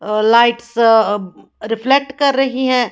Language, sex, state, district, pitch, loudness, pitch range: Hindi, female, Haryana, Jhajjar, 235 Hz, -14 LUFS, 220-260 Hz